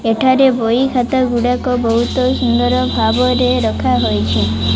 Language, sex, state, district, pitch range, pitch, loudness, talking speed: Odia, female, Odisha, Malkangiri, 225-255 Hz, 245 Hz, -14 LUFS, 115 wpm